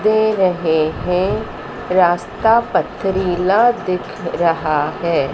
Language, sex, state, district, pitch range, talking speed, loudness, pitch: Hindi, female, Madhya Pradesh, Dhar, 170-205 Hz, 90 wpm, -17 LUFS, 180 Hz